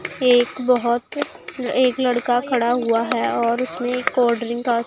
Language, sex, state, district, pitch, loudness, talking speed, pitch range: Hindi, female, Punjab, Pathankot, 245 Hz, -20 LUFS, 150 wpm, 235-250 Hz